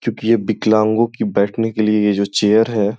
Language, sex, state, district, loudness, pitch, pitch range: Hindi, male, Uttar Pradesh, Gorakhpur, -16 LUFS, 110 Hz, 105-115 Hz